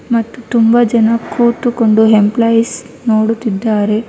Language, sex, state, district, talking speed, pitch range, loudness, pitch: Kannada, female, Karnataka, Bangalore, 90 wpm, 220-235 Hz, -12 LUFS, 230 Hz